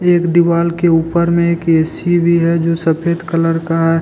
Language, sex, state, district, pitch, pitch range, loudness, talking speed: Hindi, male, Jharkhand, Deoghar, 170 Hz, 165-170 Hz, -14 LUFS, 210 wpm